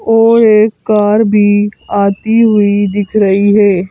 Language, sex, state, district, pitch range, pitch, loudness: Hindi, female, Madhya Pradesh, Bhopal, 205-220 Hz, 210 Hz, -10 LUFS